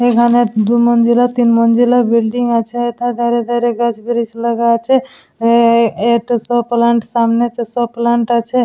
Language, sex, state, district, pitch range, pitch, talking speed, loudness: Bengali, female, West Bengal, Dakshin Dinajpur, 235-240 Hz, 235 Hz, 140 wpm, -13 LUFS